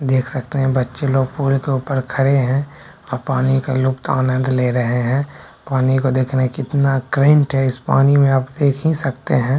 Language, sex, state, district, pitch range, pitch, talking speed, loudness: Maithili, male, Bihar, Bhagalpur, 130-140 Hz, 135 Hz, 205 wpm, -17 LUFS